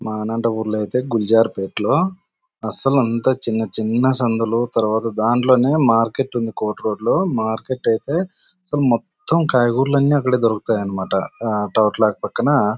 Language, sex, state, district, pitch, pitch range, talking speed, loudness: Telugu, male, Andhra Pradesh, Anantapur, 115 Hz, 110-130 Hz, 130 wpm, -19 LUFS